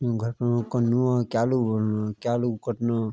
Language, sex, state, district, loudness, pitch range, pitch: Garhwali, male, Uttarakhand, Tehri Garhwal, -25 LUFS, 115-120 Hz, 120 Hz